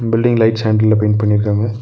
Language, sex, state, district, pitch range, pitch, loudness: Tamil, male, Tamil Nadu, Nilgiris, 105-115 Hz, 110 Hz, -14 LUFS